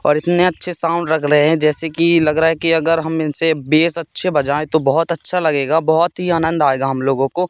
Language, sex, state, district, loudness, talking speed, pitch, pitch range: Hindi, male, Madhya Pradesh, Katni, -15 LUFS, 240 wpm, 160 Hz, 150-170 Hz